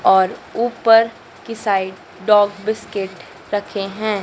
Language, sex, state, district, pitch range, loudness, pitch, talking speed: Hindi, female, Madhya Pradesh, Dhar, 195-220 Hz, -18 LUFS, 205 Hz, 115 wpm